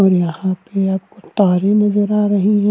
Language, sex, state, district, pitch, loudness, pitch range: Hindi, male, Uttarakhand, Tehri Garhwal, 200 Hz, -16 LUFS, 190-205 Hz